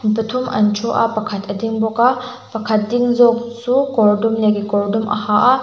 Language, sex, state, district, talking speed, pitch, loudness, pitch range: Mizo, female, Mizoram, Aizawl, 235 wpm, 225 Hz, -17 LUFS, 210-245 Hz